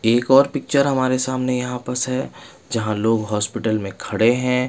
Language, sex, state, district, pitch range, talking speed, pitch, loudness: Hindi, male, Bihar, Patna, 110-130 Hz, 165 wpm, 125 Hz, -20 LUFS